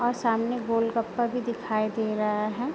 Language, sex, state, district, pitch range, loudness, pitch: Hindi, female, Bihar, Sitamarhi, 215-240 Hz, -27 LUFS, 230 Hz